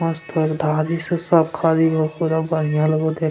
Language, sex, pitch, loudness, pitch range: Angika, male, 160 Hz, -19 LUFS, 155-165 Hz